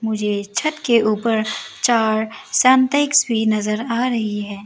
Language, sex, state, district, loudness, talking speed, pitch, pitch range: Hindi, female, Arunachal Pradesh, Lower Dibang Valley, -18 LUFS, 140 wpm, 225 Hz, 215-255 Hz